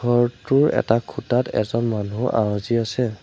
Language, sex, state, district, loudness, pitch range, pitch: Assamese, male, Assam, Sonitpur, -21 LUFS, 110-125 Hz, 120 Hz